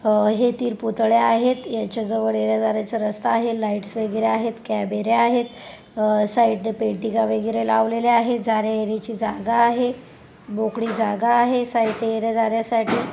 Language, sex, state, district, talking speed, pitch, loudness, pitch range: Marathi, female, Maharashtra, Pune, 160 wpm, 225 Hz, -21 LUFS, 215-235 Hz